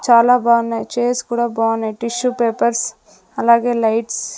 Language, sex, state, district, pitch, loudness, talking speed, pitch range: Telugu, female, Andhra Pradesh, Sri Satya Sai, 235 Hz, -17 LUFS, 135 wpm, 230-240 Hz